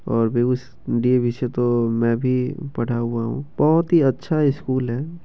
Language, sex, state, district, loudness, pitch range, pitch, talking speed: Maithili, male, Bihar, Begusarai, -21 LUFS, 120-140 Hz, 125 Hz, 160 wpm